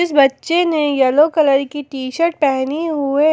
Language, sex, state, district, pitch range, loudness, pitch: Hindi, female, Jharkhand, Ranchi, 275-320 Hz, -16 LUFS, 290 Hz